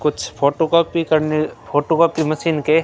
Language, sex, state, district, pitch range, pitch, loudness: Hindi, male, Rajasthan, Bikaner, 150-165 Hz, 155 Hz, -18 LUFS